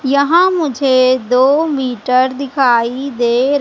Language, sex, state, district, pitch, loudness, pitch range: Hindi, female, Madhya Pradesh, Katni, 260 Hz, -13 LUFS, 255-280 Hz